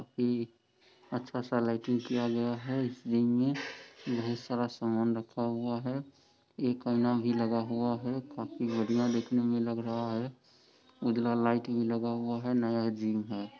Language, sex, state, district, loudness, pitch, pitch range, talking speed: Hindi, male, Bihar, Sitamarhi, -32 LUFS, 120 Hz, 115-125 Hz, 175 wpm